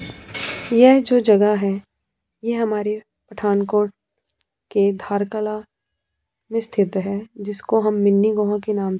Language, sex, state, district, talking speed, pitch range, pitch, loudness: Hindi, female, Punjab, Pathankot, 120 wpm, 200-215 Hz, 210 Hz, -20 LUFS